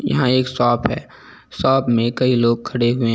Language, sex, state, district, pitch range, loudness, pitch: Hindi, male, Uttar Pradesh, Lucknow, 120-130 Hz, -18 LUFS, 120 Hz